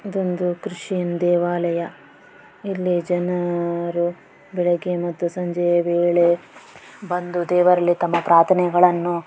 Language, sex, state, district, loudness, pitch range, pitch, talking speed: Kannada, female, Karnataka, Bellary, -20 LUFS, 175-180 Hz, 175 Hz, 85 wpm